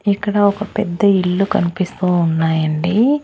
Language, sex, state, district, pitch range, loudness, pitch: Telugu, female, Andhra Pradesh, Annamaya, 175-205 Hz, -16 LUFS, 195 Hz